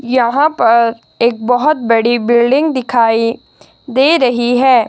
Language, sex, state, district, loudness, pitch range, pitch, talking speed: Hindi, male, Himachal Pradesh, Shimla, -12 LUFS, 235-260 Hz, 240 Hz, 125 wpm